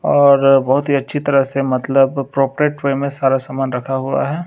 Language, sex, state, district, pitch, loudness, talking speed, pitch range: Hindi, male, Bihar, Katihar, 135 Hz, -16 LUFS, 200 wpm, 135-140 Hz